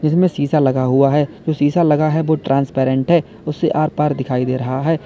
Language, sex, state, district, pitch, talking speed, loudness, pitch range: Hindi, male, Uttar Pradesh, Lalitpur, 150 Hz, 225 wpm, -16 LUFS, 135-155 Hz